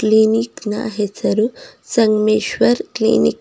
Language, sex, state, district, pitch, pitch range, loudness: Kannada, female, Karnataka, Bidar, 220 Hz, 210-230 Hz, -17 LUFS